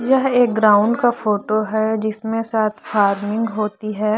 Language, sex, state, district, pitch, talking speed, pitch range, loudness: Hindi, female, Chhattisgarh, Korba, 220 Hz, 160 wpm, 215-225 Hz, -18 LUFS